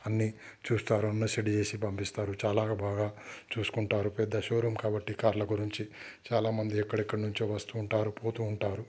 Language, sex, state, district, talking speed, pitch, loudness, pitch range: Telugu, male, Telangana, Nalgonda, 130 wpm, 110 Hz, -32 LUFS, 105-110 Hz